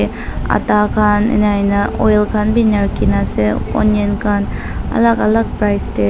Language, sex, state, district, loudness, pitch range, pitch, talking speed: Nagamese, female, Nagaland, Dimapur, -15 LUFS, 200-215 Hz, 210 Hz, 145 wpm